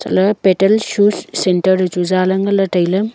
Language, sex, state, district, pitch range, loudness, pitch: Wancho, female, Arunachal Pradesh, Longding, 185-200 Hz, -15 LUFS, 190 Hz